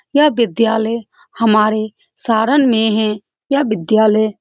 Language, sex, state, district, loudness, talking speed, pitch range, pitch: Hindi, female, Bihar, Saran, -15 LUFS, 120 wpm, 215-235 Hz, 220 Hz